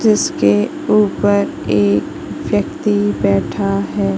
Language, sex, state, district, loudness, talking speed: Hindi, female, Madhya Pradesh, Katni, -16 LUFS, 85 wpm